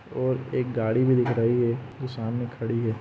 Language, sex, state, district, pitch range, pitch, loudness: Hindi, male, Jharkhand, Sahebganj, 115-130 Hz, 120 Hz, -26 LUFS